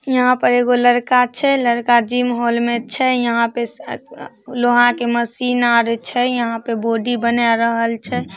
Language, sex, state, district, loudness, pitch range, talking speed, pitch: Maithili, female, Bihar, Samastipur, -16 LUFS, 235-245 Hz, 165 wpm, 240 Hz